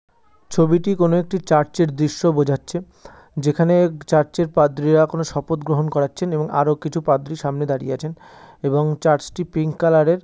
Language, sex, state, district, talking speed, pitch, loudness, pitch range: Bengali, male, West Bengal, North 24 Parganas, 145 wpm, 155 Hz, -19 LUFS, 150-170 Hz